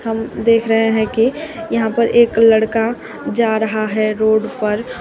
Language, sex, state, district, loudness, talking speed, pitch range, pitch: Hindi, female, Uttar Pradesh, Shamli, -16 LUFS, 170 wpm, 220-230 Hz, 225 Hz